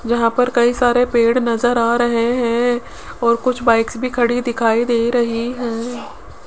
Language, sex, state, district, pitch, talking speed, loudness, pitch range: Hindi, female, Rajasthan, Jaipur, 240 Hz, 165 wpm, -17 LUFS, 230-245 Hz